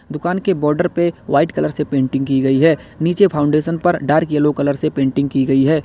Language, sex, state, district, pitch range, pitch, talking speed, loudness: Hindi, male, Uttar Pradesh, Lalitpur, 140-170 Hz, 150 Hz, 225 wpm, -16 LUFS